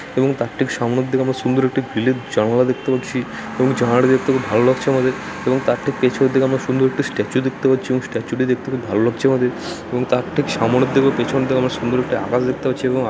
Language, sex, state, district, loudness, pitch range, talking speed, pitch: Bengali, male, West Bengal, Dakshin Dinajpur, -18 LUFS, 125-130 Hz, 265 wpm, 130 Hz